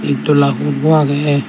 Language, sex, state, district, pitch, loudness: Chakma, male, Tripura, Dhalai, 105 Hz, -14 LUFS